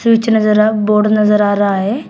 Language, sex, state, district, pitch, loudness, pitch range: Hindi, female, Uttar Pradesh, Shamli, 210 Hz, -12 LUFS, 210-220 Hz